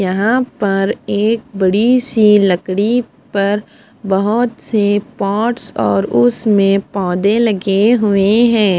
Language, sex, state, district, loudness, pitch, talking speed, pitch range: Hindi, female, Punjab, Fazilka, -14 LUFS, 205 Hz, 110 wpm, 195-230 Hz